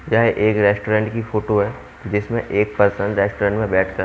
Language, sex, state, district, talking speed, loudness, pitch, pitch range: Hindi, male, Haryana, Jhajjar, 195 wpm, -19 LUFS, 105 Hz, 100-110 Hz